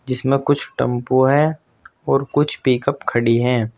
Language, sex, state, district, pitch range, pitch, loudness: Hindi, male, Uttar Pradesh, Saharanpur, 120-140 Hz, 130 Hz, -18 LUFS